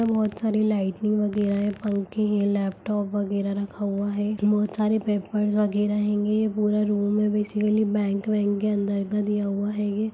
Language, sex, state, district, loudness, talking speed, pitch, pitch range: Hindi, female, Chhattisgarh, Jashpur, -24 LUFS, 170 wpm, 210 Hz, 205-210 Hz